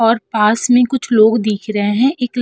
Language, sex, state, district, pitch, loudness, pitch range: Hindi, female, Uttar Pradesh, Jalaun, 230 Hz, -14 LUFS, 215-245 Hz